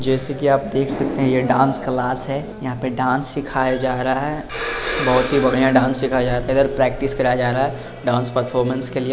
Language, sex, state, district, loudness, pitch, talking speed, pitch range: Hindi, male, Bihar, Jamui, -19 LUFS, 130 Hz, 230 wpm, 125-135 Hz